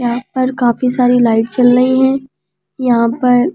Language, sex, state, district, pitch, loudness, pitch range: Hindi, female, Delhi, New Delhi, 250 Hz, -13 LUFS, 240-255 Hz